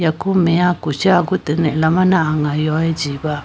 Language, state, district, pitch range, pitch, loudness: Idu Mishmi, Arunachal Pradesh, Lower Dibang Valley, 155-180 Hz, 160 Hz, -16 LUFS